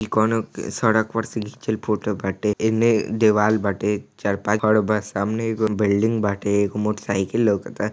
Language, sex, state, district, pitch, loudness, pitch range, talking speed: Bhojpuri, male, Bihar, East Champaran, 105 Hz, -21 LUFS, 105-110 Hz, 180 wpm